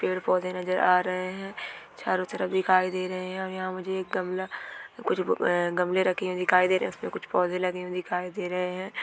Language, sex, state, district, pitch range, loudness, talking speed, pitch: Hindi, female, Bihar, Gopalganj, 180-185 Hz, -27 LUFS, 230 wpm, 185 Hz